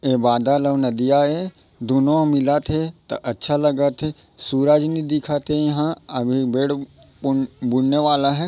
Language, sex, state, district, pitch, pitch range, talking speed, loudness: Chhattisgarhi, male, Chhattisgarh, Raigarh, 140 Hz, 135-150 Hz, 150 wpm, -20 LUFS